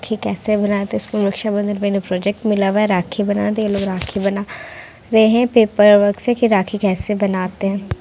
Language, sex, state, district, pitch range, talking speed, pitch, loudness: Hindi, female, Bihar, Muzaffarpur, 200-215 Hz, 210 wpm, 205 Hz, -17 LUFS